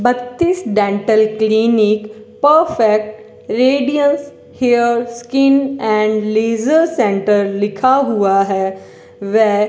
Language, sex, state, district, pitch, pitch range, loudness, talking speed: Hindi, female, Rajasthan, Bikaner, 220 Hz, 210-260 Hz, -14 LUFS, 95 wpm